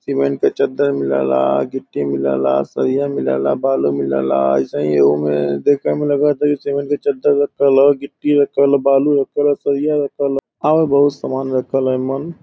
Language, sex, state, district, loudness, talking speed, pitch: Bhojpuri, male, Uttar Pradesh, Varanasi, -16 LUFS, 205 wpm, 135 Hz